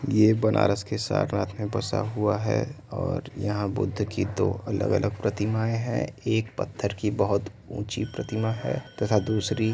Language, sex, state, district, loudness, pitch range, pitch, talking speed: Hindi, male, Uttar Pradesh, Varanasi, -27 LUFS, 100-110 Hz, 105 Hz, 160 wpm